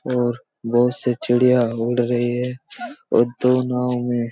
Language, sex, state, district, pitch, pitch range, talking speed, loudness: Hindi, male, Chhattisgarh, Raigarh, 125 Hz, 120-125 Hz, 155 wpm, -20 LUFS